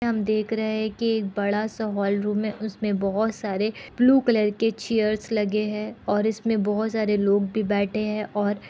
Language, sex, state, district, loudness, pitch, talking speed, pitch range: Hindi, female, Bihar, Kishanganj, -24 LUFS, 215 Hz, 205 wpm, 205-220 Hz